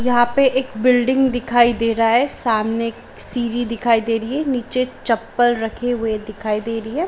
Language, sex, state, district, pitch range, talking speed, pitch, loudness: Hindi, female, Jharkhand, Sahebganj, 225-250 Hz, 185 wpm, 240 Hz, -18 LUFS